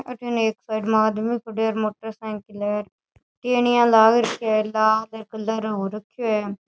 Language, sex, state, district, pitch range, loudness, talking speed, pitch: Rajasthani, female, Rajasthan, Churu, 215-225 Hz, -22 LUFS, 170 wpm, 220 Hz